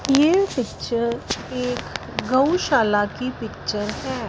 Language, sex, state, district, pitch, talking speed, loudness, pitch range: Hindi, female, Punjab, Fazilka, 250 Hz, 100 wpm, -22 LUFS, 230-275 Hz